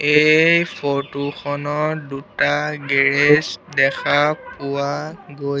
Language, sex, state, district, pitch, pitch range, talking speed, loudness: Assamese, male, Assam, Sonitpur, 145 Hz, 140-150 Hz, 85 wpm, -18 LUFS